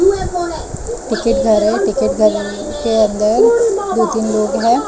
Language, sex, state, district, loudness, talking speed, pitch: Hindi, female, Maharashtra, Mumbai Suburban, -15 LUFS, 135 wpm, 225 Hz